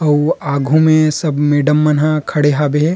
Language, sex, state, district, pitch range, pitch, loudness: Chhattisgarhi, male, Chhattisgarh, Rajnandgaon, 145-155 Hz, 150 Hz, -14 LUFS